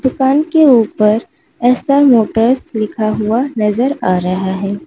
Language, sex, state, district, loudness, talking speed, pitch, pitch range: Hindi, female, Uttar Pradesh, Lalitpur, -13 LUFS, 135 wpm, 235 Hz, 215-265 Hz